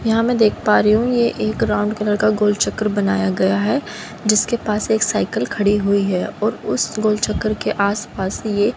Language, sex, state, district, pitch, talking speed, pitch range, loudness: Hindi, female, Haryana, Jhajjar, 215 Hz, 225 wpm, 205-220 Hz, -18 LUFS